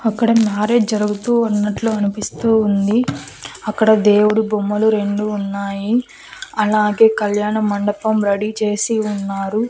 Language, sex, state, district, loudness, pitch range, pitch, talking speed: Telugu, female, Andhra Pradesh, Annamaya, -17 LUFS, 205-225 Hz, 215 Hz, 95 wpm